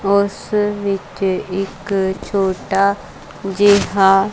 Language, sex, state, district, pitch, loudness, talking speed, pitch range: Punjabi, female, Punjab, Kapurthala, 195 Hz, -17 LUFS, 70 wpm, 195-200 Hz